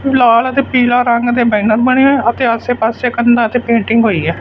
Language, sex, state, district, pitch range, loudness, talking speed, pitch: Punjabi, male, Punjab, Fazilka, 230-250 Hz, -12 LUFS, 220 wpm, 240 Hz